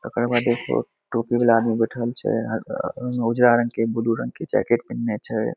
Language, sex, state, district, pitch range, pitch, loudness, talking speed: Maithili, male, Bihar, Madhepura, 115-120 Hz, 120 Hz, -22 LUFS, 205 wpm